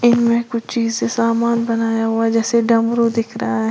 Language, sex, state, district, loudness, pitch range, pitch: Hindi, female, Uttar Pradesh, Lalitpur, -17 LUFS, 225-235 Hz, 230 Hz